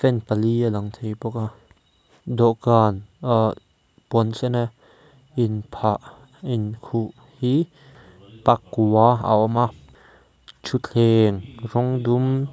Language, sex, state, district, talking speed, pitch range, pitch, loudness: Mizo, male, Mizoram, Aizawl, 110 wpm, 110-125 Hz, 115 Hz, -22 LUFS